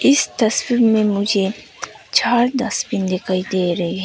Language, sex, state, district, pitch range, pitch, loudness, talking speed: Hindi, female, Arunachal Pradesh, Papum Pare, 185-240 Hz, 205 Hz, -18 LUFS, 150 wpm